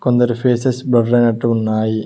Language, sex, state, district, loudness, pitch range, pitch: Telugu, male, Telangana, Mahabubabad, -15 LUFS, 115-125 Hz, 120 Hz